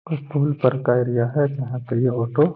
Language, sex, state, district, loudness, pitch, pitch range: Hindi, male, Bihar, Gaya, -21 LUFS, 130 Hz, 125-145 Hz